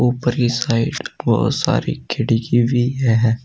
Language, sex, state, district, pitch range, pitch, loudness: Hindi, male, Uttar Pradesh, Saharanpur, 115-125 Hz, 120 Hz, -18 LUFS